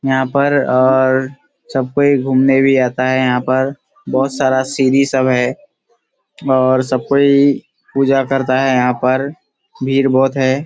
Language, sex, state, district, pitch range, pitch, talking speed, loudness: Hindi, male, Bihar, Kishanganj, 130-140 Hz, 130 Hz, 150 wpm, -14 LUFS